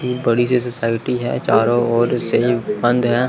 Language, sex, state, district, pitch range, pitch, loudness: Hindi, male, Chandigarh, Chandigarh, 115-125 Hz, 120 Hz, -18 LUFS